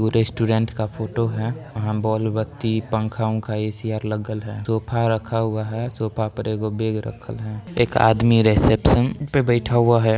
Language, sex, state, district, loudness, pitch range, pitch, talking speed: Hindi, male, Bihar, Darbhanga, -21 LUFS, 110-115 Hz, 110 Hz, 165 wpm